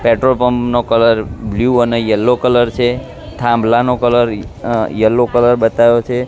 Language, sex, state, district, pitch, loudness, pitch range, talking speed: Gujarati, male, Gujarat, Gandhinagar, 120 Hz, -13 LUFS, 115-125 Hz, 155 wpm